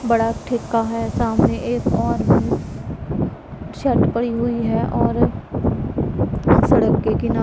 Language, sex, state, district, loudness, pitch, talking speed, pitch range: Hindi, female, Punjab, Pathankot, -19 LUFS, 230 Hz, 120 wpm, 230-235 Hz